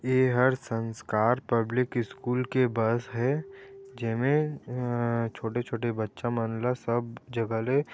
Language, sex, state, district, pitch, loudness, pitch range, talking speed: Chhattisgarhi, male, Chhattisgarh, Raigarh, 120 Hz, -28 LUFS, 115-130 Hz, 115 wpm